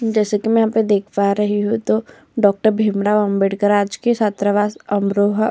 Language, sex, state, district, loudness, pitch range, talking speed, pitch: Hindi, female, Uttar Pradesh, Jyotiba Phule Nagar, -17 LUFS, 200-215 Hz, 185 wpm, 205 Hz